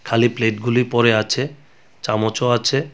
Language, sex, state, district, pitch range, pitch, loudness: Bengali, male, Tripura, West Tripura, 110-135 Hz, 120 Hz, -18 LUFS